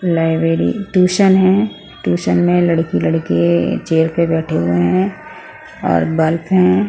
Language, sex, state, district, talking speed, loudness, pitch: Hindi, female, Punjab, Pathankot, 140 wpm, -15 LUFS, 165 Hz